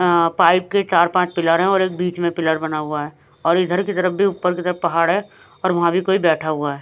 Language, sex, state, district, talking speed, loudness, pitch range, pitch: Hindi, female, Himachal Pradesh, Shimla, 265 wpm, -18 LUFS, 165-185 Hz, 175 Hz